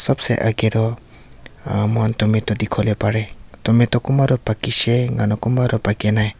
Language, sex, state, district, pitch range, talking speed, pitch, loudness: Nagamese, male, Nagaland, Kohima, 105-120 Hz, 170 wpm, 110 Hz, -18 LUFS